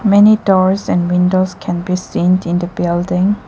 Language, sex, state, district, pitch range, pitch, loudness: English, female, Nagaland, Kohima, 175-195 Hz, 185 Hz, -14 LUFS